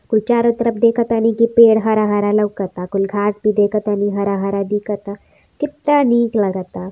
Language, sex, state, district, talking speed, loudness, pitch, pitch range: Hindi, female, Uttar Pradesh, Varanasi, 165 wpm, -16 LUFS, 210 Hz, 200-230 Hz